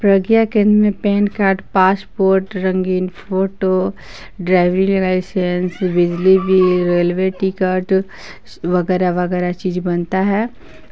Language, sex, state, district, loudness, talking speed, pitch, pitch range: Hindi, female, Jharkhand, Palamu, -16 LUFS, 100 wpm, 190 Hz, 180-195 Hz